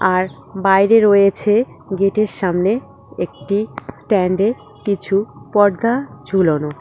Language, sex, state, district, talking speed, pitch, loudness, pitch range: Bengali, female, West Bengal, Cooch Behar, 90 wpm, 195 Hz, -17 LUFS, 185-210 Hz